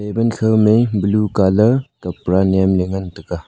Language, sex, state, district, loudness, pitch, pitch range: Wancho, male, Arunachal Pradesh, Longding, -16 LUFS, 100 Hz, 95-110 Hz